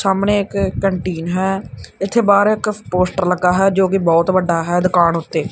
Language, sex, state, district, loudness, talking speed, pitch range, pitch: Punjabi, male, Punjab, Kapurthala, -16 LUFS, 175 wpm, 180-195 Hz, 185 Hz